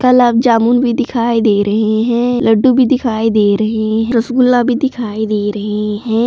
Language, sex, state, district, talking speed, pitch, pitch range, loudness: Hindi, female, Jharkhand, Palamu, 170 wpm, 230 Hz, 215-245 Hz, -13 LUFS